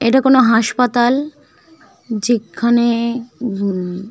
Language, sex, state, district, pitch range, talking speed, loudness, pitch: Bengali, female, West Bengal, Malda, 225-255 Hz, 60 wpm, -16 LUFS, 240 Hz